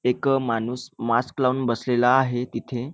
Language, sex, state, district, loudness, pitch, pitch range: Marathi, male, Maharashtra, Nagpur, -23 LUFS, 125 Hz, 120-130 Hz